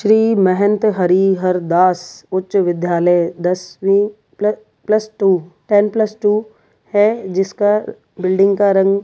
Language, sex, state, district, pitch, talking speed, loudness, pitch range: Hindi, female, Rajasthan, Jaipur, 195 Hz, 125 wpm, -16 LUFS, 185-210 Hz